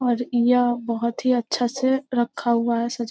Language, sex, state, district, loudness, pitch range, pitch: Hindi, female, Bihar, Gopalganj, -22 LUFS, 235-250 Hz, 240 Hz